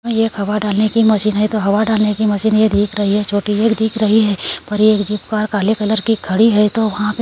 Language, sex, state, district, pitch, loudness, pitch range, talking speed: Hindi, female, Maharashtra, Gondia, 215 Hz, -15 LUFS, 210-220 Hz, 305 wpm